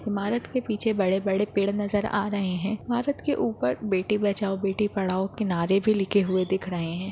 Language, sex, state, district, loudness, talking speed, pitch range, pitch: Hindi, female, Maharashtra, Aurangabad, -26 LUFS, 200 wpm, 190-210 Hz, 200 Hz